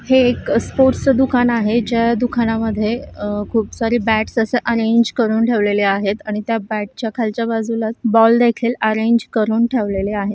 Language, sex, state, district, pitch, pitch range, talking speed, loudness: Marathi, female, Maharashtra, Solapur, 225 Hz, 215-235 Hz, 170 wpm, -17 LUFS